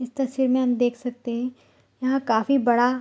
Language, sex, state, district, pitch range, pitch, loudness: Hindi, female, Bihar, Saharsa, 240-260 Hz, 250 Hz, -23 LUFS